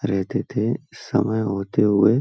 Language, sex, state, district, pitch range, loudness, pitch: Hindi, male, Uttar Pradesh, Hamirpur, 100-110 Hz, -22 LUFS, 105 Hz